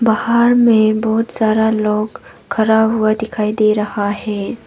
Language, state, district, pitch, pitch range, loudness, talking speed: Hindi, Arunachal Pradesh, Papum Pare, 220 Hz, 215-225 Hz, -15 LUFS, 140 wpm